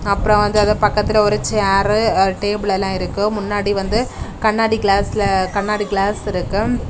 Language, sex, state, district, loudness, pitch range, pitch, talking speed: Tamil, female, Tamil Nadu, Kanyakumari, -17 LUFS, 195-210 Hz, 205 Hz, 140 wpm